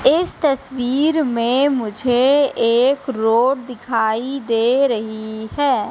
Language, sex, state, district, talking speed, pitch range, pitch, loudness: Hindi, female, Madhya Pradesh, Katni, 100 wpm, 230-275 Hz, 250 Hz, -18 LUFS